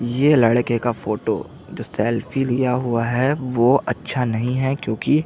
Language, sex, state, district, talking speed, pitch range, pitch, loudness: Hindi, male, Chhattisgarh, Jashpur, 160 wpm, 115-130 Hz, 120 Hz, -20 LUFS